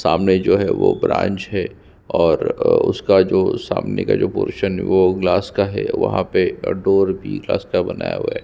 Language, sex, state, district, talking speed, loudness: Hindi, male, Chhattisgarh, Sukma, 190 wpm, -18 LUFS